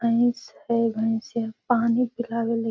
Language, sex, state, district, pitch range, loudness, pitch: Magahi, female, Bihar, Gaya, 225-240 Hz, -25 LUFS, 230 Hz